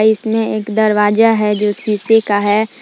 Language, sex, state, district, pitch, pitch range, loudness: Hindi, female, Jharkhand, Palamu, 215 Hz, 210-225 Hz, -14 LUFS